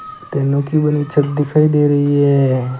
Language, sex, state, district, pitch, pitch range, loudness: Hindi, male, Rajasthan, Bikaner, 145 Hz, 140-150 Hz, -15 LUFS